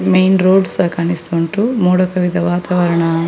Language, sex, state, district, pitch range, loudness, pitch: Kannada, female, Karnataka, Dakshina Kannada, 170-185 Hz, -14 LUFS, 180 Hz